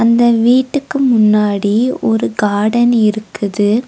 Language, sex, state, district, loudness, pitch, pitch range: Tamil, female, Tamil Nadu, Nilgiris, -13 LUFS, 220 Hz, 205-240 Hz